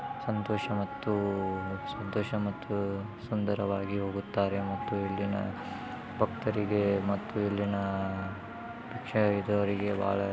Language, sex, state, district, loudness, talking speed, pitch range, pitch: Kannada, male, Karnataka, Dharwad, -32 LUFS, 85 wpm, 100-105 Hz, 100 Hz